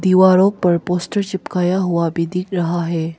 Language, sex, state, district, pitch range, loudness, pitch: Hindi, female, Arunachal Pradesh, Papum Pare, 170-185 Hz, -17 LUFS, 180 Hz